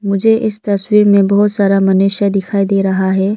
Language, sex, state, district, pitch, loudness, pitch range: Hindi, female, Arunachal Pradesh, Lower Dibang Valley, 200 Hz, -12 LUFS, 195-205 Hz